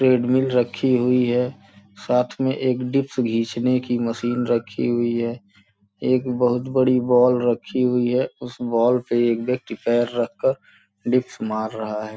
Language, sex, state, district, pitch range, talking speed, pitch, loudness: Hindi, male, Uttar Pradesh, Gorakhpur, 115-125 Hz, 165 wpm, 125 Hz, -21 LUFS